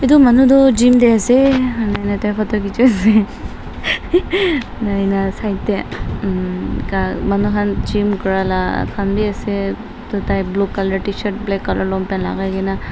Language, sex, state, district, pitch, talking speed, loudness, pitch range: Nagamese, female, Nagaland, Dimapur, 205 Hz, 180 wpm, -16 LUFS, 195-235 Hz